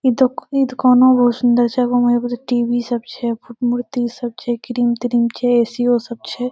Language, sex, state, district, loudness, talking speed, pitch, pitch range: Maithili, female, Bihar, Saharsa, -17 LUFS, 210 wpm, 245 Hz, 240-250 Hz